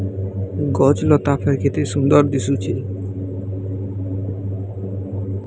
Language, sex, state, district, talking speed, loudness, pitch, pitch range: Odia, female, Odisha, Sambalpur, 55 wpm, -20 LUFS, 95 Hz, 95-135 Hz